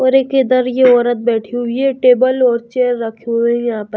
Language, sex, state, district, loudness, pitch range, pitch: Hindi, female, Haryana, Jhajjar, -14 LUFS, 235-255 Hz, 245 Hz